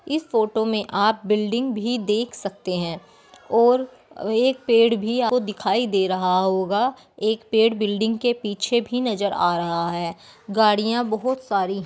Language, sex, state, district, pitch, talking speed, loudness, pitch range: Hindi, female, Bihar, Begusarai, 220 Hz, 160 wpm, -22 LUFS, 200-235 Hz